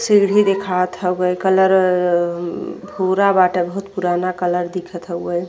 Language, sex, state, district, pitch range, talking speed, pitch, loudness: Hindi, female, Bihar, Vaishali, 175-190 Hz, 130 wpm, 180 Hz, -18 LUFS